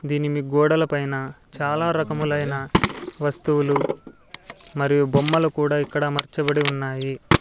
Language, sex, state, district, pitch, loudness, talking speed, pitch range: Telugu, male, Andhra Pradesh, Sri Satya Sai, 145 Hz, -22 LUFS, 95 wpm, 140-150 Hz